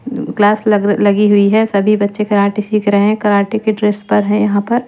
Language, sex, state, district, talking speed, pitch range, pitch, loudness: Hindi, female, Chhattisgarh, Raipur, 220 wpm, 205-215 Hz, 210 Hz, -13 LUFS